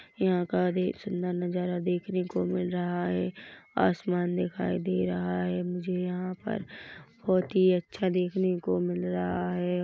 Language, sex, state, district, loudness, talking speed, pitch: Hindi, male, Chhattisgarh, Rajnandgaon, -29 LUFS, 160 wpm, 180 Hz